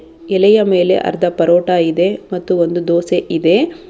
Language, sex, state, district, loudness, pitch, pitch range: Kannada, female, Karnataka, Bangalore, -14 LUFS, 180 Hz, 170-190 Hz